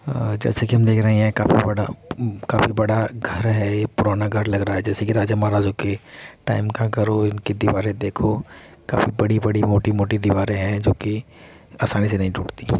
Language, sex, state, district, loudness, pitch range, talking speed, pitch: Hindi, male, Uttar Pradesh, Muzaffarnagar, -21 LUFS, 105-110 Hz, 210 wpm, 105 Hz